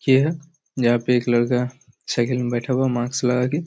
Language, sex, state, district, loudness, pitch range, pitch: Hindi, male, Chhattisgarh, Raigarh, -21 LUFS, 120-130 Hz, 125 Hz